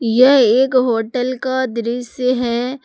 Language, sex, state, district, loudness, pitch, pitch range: Hindi, female, Jharkhand, Palamu, -16 LUFS, 250 Hz, 235-260 Hz